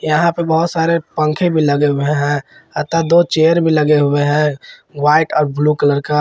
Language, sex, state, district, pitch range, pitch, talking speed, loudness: Hindi, male, Jharkhand, Ranchi, 145-165 Hz, 150 Hz, 205 wpm, -15 LUFS